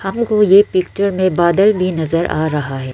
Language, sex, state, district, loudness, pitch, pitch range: Hindi, female, Arunachal Pradesh, Lower Dibang Valley, -14 LUFS, 185 Hz, 160-200 Hz